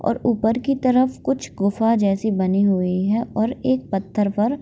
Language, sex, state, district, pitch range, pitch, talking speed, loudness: Hindi, female, Bihar, Begusarai, 200-250 Hz, 220 Hz, 195 wpm, -20 LUFS